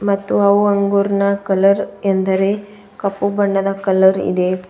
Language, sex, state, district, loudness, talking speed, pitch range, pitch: Kannada, female, Karnataka, Bidar, -16 LUFS, 130 wpm, 195-200 Hz, 200 Hz